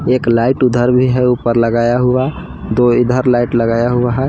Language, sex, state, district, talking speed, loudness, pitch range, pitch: Hindi, male, Jharkhand, Palamu, 195 wpm, -13 LUFS, 120-125 Hz, 125 Hz